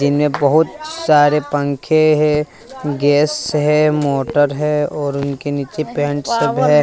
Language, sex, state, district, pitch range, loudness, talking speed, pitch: Hindi, male, Bihar, West Champaran, 145-150 Hz, -16 LUFS, 130 wpm, 150 Hz